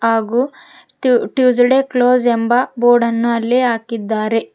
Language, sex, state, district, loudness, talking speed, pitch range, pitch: Kannada, female, Karnataka, Koppal, -15 LUFS, 105 wpm, 230-255 Hz, 245 Hz